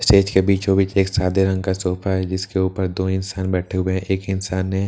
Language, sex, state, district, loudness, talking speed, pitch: Hindi, male, Bihar, Katihar, -20 LUFS, 235 wpm, 95 Hz